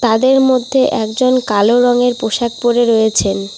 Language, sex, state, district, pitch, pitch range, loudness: Bengali, female, West Bengal, Cooch Behar, 240 Hz, 220-255 Hz, -13 LUFS